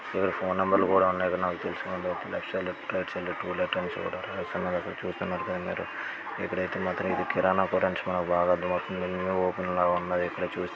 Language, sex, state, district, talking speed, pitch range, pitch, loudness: Telugu, male, Andhra Pradesh, Guntur, 230 wpm, 90-95 Hz, 90 Hz, -29 LUFS